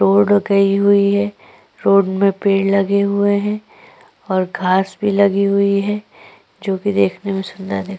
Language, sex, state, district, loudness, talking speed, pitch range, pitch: Hindi, female, Chhattisgarh, Korba, -16 LUFS, 165 wpm, 190-200 Hz, 200 Hz